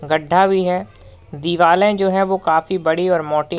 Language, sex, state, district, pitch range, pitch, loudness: Hindi, male, Uttar Pradesh, Lalitpur, 155-190 Hz, 170 Hz, -17 LUFS